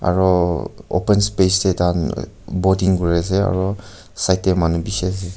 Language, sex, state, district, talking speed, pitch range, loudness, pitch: Nagamese, male, Nagaland, Kohima, 165 wpm, 90-95 Hz, -18 LUFS, 95 Hz